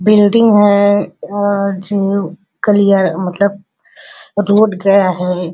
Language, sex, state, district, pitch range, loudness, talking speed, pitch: Hindi, female, Uttar Pradesh, Varanasi, 190-205 Hz, -13 LUFS, 75 wpm, 200 Hz